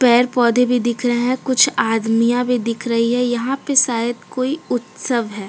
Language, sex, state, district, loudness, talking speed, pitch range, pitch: Hindi, female, Jharkhand, Deoghar, -17 LUFS, 195 wpm, 235-255 Hz, 245 Hz